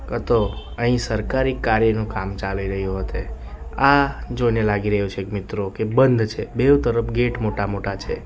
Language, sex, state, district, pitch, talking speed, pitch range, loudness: Gujarati, male, Gujarat, Valsad, 110 Hz, 175 wpm, 100-120 Hz, -21 LUFS